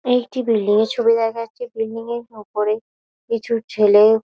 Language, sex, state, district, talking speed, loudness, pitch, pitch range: Bengali, female, West Bengal, Malda, 155 wpm, -19 LUFS, 225 Hz, 215-235 Hz